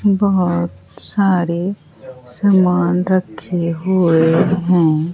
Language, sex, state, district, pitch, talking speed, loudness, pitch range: Hindi, female, Bihar, Katihar, 175 Hz, 70 wpm, -16 LUFS, 160-185 Hz